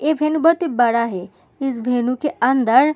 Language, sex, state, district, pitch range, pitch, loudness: Hindi, female, Uttar Pradesh, Muzaffarnagar, 240-305 Hz, 260 Hz, -18 LUFS